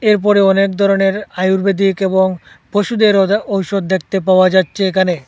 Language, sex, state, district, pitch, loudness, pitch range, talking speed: Bengali, male, Assam, Hailakandi, 195 Hz, -14 LUFS, 190-200 Hz, 135 wpm